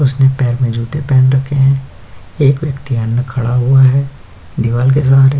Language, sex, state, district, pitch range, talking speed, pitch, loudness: Hindi, male, Uttar Pradesh, Jyotiba Phule Nagar, 120-135 Hz, 180 wpm, 130 Hz, -13 LUFS